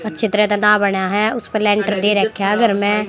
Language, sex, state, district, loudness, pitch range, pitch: Hindi, female, Haryana, Jhajjar, -16 LUFS, 205-215 Hz, 210 Hz